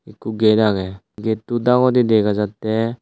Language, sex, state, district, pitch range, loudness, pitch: Chakma, male, Tripura, Dhalai, 105-115 Hz, -18 LUFS, 110 Hz